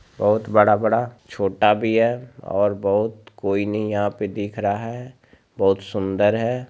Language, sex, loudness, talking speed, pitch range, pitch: Maithili, male, -21 LUFS, 150 wpm, 100-115 Hz, 105 Hz